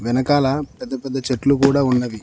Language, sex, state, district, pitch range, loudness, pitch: Telugu, male, Telangana, Mahabubabad, 125-140 Hz, -19 LUFS, 135 Hz